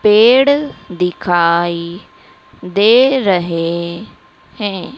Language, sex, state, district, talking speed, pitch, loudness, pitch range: Hindi, female, Madhya Pradesh, Dhar, 60 wpm, 185 Hz, -14 LUFS, 175-220 Hz